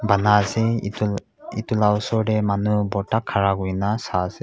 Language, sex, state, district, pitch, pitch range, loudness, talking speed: Nagamese, male, Nagaland, Kohima, 105 Hz, 100-110 Hz, -22 LUFS, 165 wpm